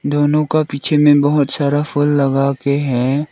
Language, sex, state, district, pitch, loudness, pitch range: Hindi, male, Arunachal Pradesh, Lower Dibang Valley, 145 Hz, -15 LUFS, 140-150 Hz